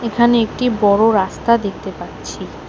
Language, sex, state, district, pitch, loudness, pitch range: Bengali, female, West Bengal, Alipurduar, 225 Hz, -15 LUFS, 200-235 Hz